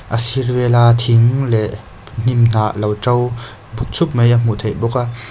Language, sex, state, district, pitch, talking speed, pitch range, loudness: Mizo, male, Mizoram, Aizawl, 115 Hz, 190 wpm, 110-125 Hz, -15 LUFS